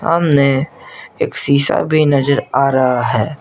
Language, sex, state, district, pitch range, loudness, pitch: Hindi, male, Jharkhand, Garhwa, 130-150 Hz, -14 LUFS, 140 Hz